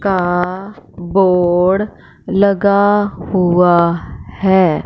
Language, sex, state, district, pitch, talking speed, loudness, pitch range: Hindi, female, Punjab, Fazilka, 185 Hz, 60 wpm, -14 LUFS, 175-200 Hz